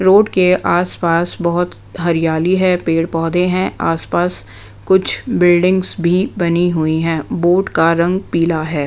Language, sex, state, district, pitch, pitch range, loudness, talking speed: Hindi, female, Bihar, West Champaran, 170 Hz, 160-180 Hz, -15 LUFS, 135 wpm